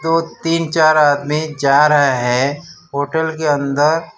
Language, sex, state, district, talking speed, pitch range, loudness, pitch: Hindi, male, Gujarat, Valsad, 155 wpm, 145-160 Hz, -15 LUFS, 150 Hz